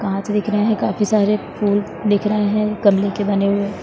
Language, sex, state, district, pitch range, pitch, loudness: Hindi, female, Bihar, Saran, 200-210 Hz, 205 Hz, -18 LUFS